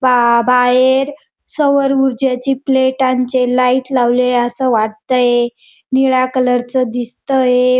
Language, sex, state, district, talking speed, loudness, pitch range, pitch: Marathi, female, Maharashtra, Dhule, 90 wpm, -14 LUFS, 245-265 Hz, 255 Hz